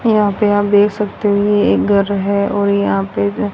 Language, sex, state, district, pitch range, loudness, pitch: Hindi, female, Haryana, Rohtak, 200-205 Hz, -14 LUFS, 205 Hz